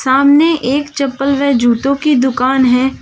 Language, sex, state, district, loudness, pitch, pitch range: Hindi, female, Uttar Pradesh, Shamli, -12 LUFS, 275 Hz, 260-280 Hz